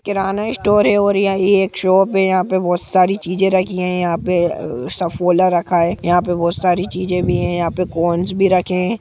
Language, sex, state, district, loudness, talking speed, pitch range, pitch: Hindi, female, Jharkhand, Jamtara, -16 LUFS, 235 wpm, 175-195 Hz, 180 Hz